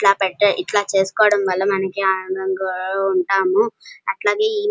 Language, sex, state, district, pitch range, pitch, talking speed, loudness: Telugu, female, Andhra Pradesh, Krishna, 190-205 Hz, 195 Hz, 140 wpm, -19 LUFS